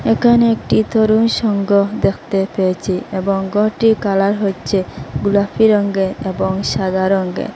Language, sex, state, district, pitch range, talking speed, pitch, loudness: Bengali, female, Assam, Hailakandi, 190-215 Hz, 120 wpm, 200 Hz, -16 LUFS